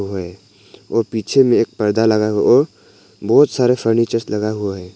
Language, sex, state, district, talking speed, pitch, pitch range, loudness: Hindi, male, Arunachal Pradesh, Papum Pare, 155 wpm, 105 Hz, 100-115 Hz, -16 LUFS